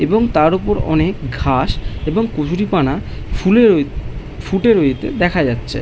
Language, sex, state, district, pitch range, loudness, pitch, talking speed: Bengali, male, West Bengal, Malda, 130-190 Hz, -16 LUFS, 155 Hz, 135 wpm